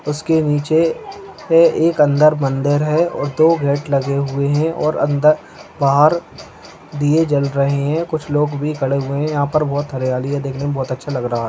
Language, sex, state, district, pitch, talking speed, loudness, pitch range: Hindi, male, Bihar, Madhepura, 145 Hz, 200 wpm, -17 LUFS, 140-155 Hz